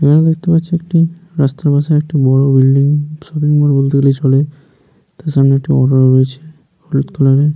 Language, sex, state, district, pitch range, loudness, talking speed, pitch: Bengali, male, West Bengal, Paschim Medinipur, 135-155 Hz, -13 LUFS, 175 wpm, 145 Hz